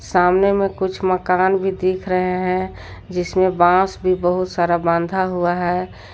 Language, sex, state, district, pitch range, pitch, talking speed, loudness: Hindi, female, Jharkhand, Garhwa, 180-185 Hz, 185 Hz, 155 wpm, -18 LUFS